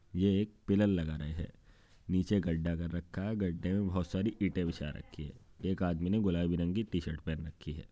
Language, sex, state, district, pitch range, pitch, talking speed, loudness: Hindi, male, Uttar Pradesh, Jyotiba Phule Nagar, 85-100 Hz, 90 Hz, 225 wpm, -34 LUFS